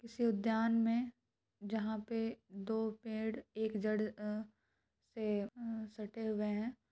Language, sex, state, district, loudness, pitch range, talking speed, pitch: Hindi, female, Bihar, Gaya, -39 LUFS, 215-225 Hz, 140 wpm, 220 Hz